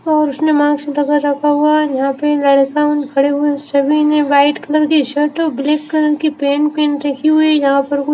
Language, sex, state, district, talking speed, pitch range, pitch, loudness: Hindi, female, Haryana, Rohtak, 230 wpm, 285-300 Hz, 295 Hz, -14 LUFS